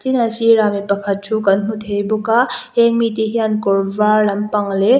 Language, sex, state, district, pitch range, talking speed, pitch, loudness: Mizo, female, Mizoram, Aizawl, 205-230 Hz, 205 wpm, 215 Hz, -16 LUFS